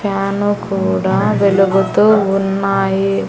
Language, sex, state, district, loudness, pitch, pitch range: Telugu, female, Andhra Pradesh, Annamaya, -14 LUFS, 195 Hz, 195-200 Hz